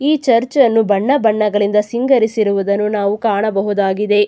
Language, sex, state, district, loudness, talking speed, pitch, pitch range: Kannada, female, Karnataka, Chamarajanagar, -15 LUFS, 110 wpm, 210 Hz, 205-235 Hz